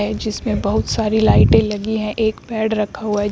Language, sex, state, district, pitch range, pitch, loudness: Hindi, female, Uttar Pradesh, Shamli, 210-220 Hz, 215 Hz, -18 LUFS